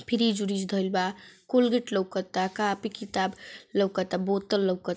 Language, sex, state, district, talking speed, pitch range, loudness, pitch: Bhojpuri, female, Uttar Pradesh, Ghazipur, 145 wpm, 185-210 Hz, -28 LUFS, 195 Hz